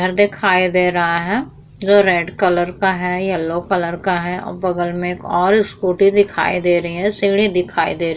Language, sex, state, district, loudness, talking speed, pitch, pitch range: Hindi, female, Uttar Pradesh, Muzaffarnagar, -17 LUFS, 205 wpm, 180 Hz, 175-195 Hz